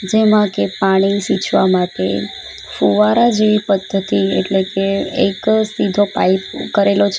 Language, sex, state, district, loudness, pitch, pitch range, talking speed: Gujarati, female, Gujarat, Valsad, -15 LUFS, 195 Hz, 190-210 Hz, 115 wpm